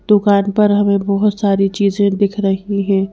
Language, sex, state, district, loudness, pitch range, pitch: Hindi, female, Madhya Pradesh, Bhopal, -15 LUFS, 195-205 Hz, 200 Hz